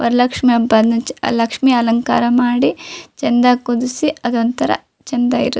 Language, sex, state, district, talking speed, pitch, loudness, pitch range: Kannada, female, Karnataka, Shimoga, 120 wpm, 245 Hz, -15 LUFS, 235-250 Hz